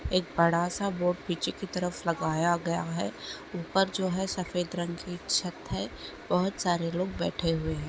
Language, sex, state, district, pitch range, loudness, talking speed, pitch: Hindi, female, Chhattisgarh, Kabirdham, 170-185 Hz, -30 LUFS, 185 wpm, 175 Hz